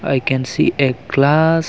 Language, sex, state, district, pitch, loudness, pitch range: English, male, Arunachal Pradesh, Longding, 135 Hz, -16 LUFS, 130-155 Hz